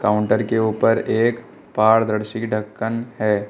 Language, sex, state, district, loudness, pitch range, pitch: Hindi, male, Uttar Pradesh, Lucknow, -20 LUFS, 105-115 Hz, 110 Hz